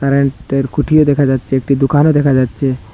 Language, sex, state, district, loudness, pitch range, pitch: Bengali, male, Assam, Hailakandi, -13 LUFS, 135-145 Hz, 135 Hz